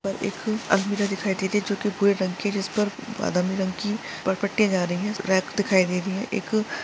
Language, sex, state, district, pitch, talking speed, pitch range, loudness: Hindi, male, Jharkhand, Jamtara, 200 Hz, 235 wpm, 190-210 Hz, -25 LUFS